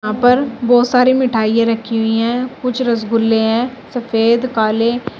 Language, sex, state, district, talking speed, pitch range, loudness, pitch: Hindi, female, Uttar Pradesh, Shamli, 140 wpm, 225-250 Hz, -15 LUFS, 235 Hz